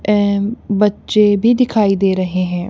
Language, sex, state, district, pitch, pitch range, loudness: Hindi, female, Punjab, Kapurthala, 205 Hz, 195-210 Hz, -15 LUFS